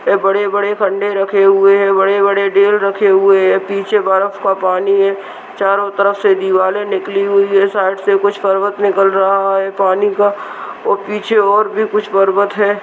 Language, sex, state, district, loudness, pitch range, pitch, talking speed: Hindi, female, Uttarakhand, Uttarkashi, -13 LUFS, 195-205 Hz, 200 Hz, 185 wpm